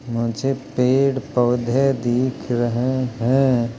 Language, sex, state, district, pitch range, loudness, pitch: Hindi, male, Uttar Pradesh, Jalaun, 120-135 Hz, -20 LUFS, 125 Hz